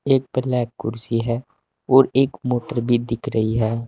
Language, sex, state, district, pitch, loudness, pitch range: Hindi, male, Uttar Pradesh, Saharanpur, 120 Hz, -21 LUFS, 115-135 Hz